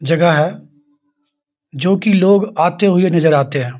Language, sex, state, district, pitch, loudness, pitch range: Hindi, male, Bihar, Begusarai, 155 Hz, -14 LUFS, 145-185 Hz